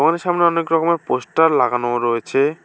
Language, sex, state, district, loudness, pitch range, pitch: Bengali, male, West Bengal, Alipurduar, -18 LUFS, 125-170 Hz, 160 Hz